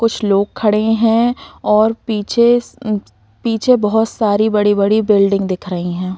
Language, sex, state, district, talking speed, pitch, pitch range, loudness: Hindi, female, Uttar Pradesh, Varanasi, 145 wpm, 215 Hz, 200-225 Hz, -15 LUFS